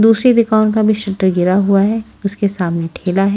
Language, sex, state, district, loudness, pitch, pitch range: Hindi, female, Haryana, Rohtak, -14 LUFS, 200 Hz, 190-215 Hz